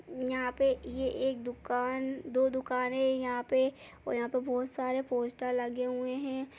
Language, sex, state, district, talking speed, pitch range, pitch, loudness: Kumaoni, female, Uttarakhand, Uttarkashi, 175 wpm, 250-265 Hz, 255 Hz, -32 LUFS